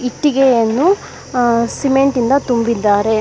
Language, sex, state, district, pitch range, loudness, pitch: Kannada, female, Karnataka, Bangalore, 235-275 Hz, -14 LUFS, 250 Hz